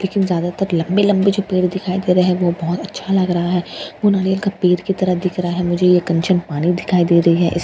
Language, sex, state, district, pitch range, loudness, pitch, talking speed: Hindi, female, Bihar, Katihar, 175-195 Hz, -17 LUFS, 180 Hz, 265 wpm